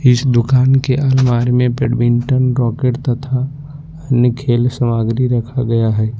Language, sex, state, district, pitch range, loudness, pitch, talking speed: Hindi, male, Jharkhand, Ranchi, 120-130 Hz, -15 LUFS, 125 Hz, 135 wpm